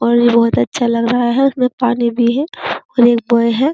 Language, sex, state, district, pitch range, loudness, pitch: Hindi, female, Uttar Pradesh, Jyotiba Phule Nagar, 235-250 Hz, -14 LUFS, 240 Hz